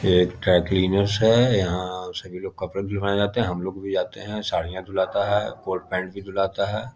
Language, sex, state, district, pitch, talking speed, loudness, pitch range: Hindi, male, Bihar, Muzaffarpur, 100 Hz, 235 wpm, -23 LUFS, 95-105 Hz